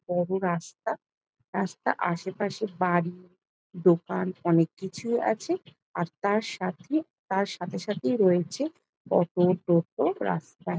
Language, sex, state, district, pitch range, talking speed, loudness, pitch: Bengali, female, West Bengal, Jalpaiguri, 175-200 Hz, 100 wpm, -28 LUFS, 180 Hz